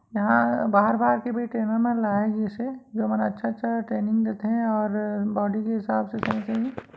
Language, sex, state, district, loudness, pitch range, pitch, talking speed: Chhattisgarhi, female, Chhattisgarh, Raigarh, -25 LUFS, 200-230 Hz, 215 Hz, 170 wpm